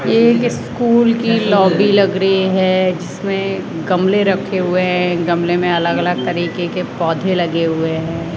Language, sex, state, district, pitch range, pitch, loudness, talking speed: Hindi, male, Rajasthan, Jaipur, 175-195 Hz, 185 Hz, -15 LUFS, 160 wpm